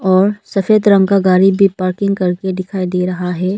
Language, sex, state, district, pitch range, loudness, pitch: Hindi, female, Arunachal Pradesh, Lower Dibang Valley, 185-195 Hz, -14 LUFS, 190 Hz